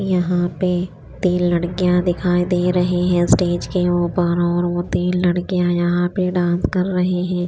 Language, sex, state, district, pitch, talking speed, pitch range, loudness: Hindi, female, Chandigarh, Chandigarh, 180 Hz, 170 wpm, 175-180 Hz, -18 LUFS